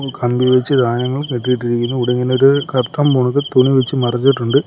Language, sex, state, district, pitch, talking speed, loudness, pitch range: Malayalam, male, Kerala, Kollam, 130 Hz, 115 wpm, -15 LUFS, 125-135 Hz